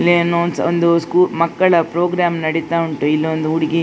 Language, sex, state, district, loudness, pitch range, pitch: Kannada, female, Karnataka, Dakshina Kannada, -16 LUFS, 160-170 Hz, 170 Hz